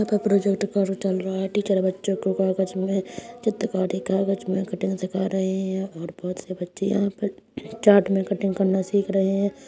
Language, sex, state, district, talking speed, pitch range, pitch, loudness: Hindi, female, Uttar Pradesh, Hamirpur, 200 wpm, 190-200 Hz, 195 Hz, -24 LUFS